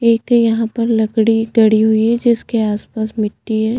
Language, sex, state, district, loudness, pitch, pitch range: Hindi, female, Chhattisgarh, Jashpur, -15 LUFS, 225 Hz, 220-230 Hz